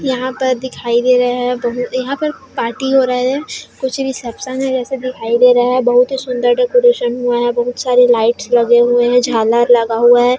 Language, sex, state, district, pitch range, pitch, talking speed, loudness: Chhattisgarhi, female, Chhattisgarh, Raigarh, 240-260 Hz, 250 Hz, 215 wpm, -14 LUFS